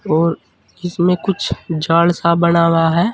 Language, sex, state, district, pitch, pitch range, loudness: Hindi, male, Uttar Pradesh, Saharanpur, 170 Hz, 165-175 Hz, -15 LUFS